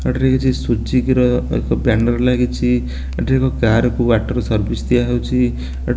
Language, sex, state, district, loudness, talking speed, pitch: Odia, male, Odisha, Nuapada, -17 LUFS, 140 wpm, 115 Hz